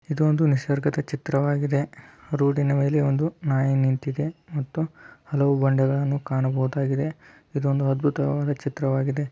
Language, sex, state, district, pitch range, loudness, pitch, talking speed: Kannada, male, Karnataka, Belgaum, 135-150 Hz, -24 LUFS, 140 Hz, 105 wpm